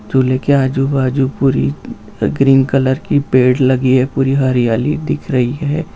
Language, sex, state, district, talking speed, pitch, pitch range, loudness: Hindi, male, Bihar, Saran, 150 wpm, 135 Hz, 130-140 Hz, -14 LUFS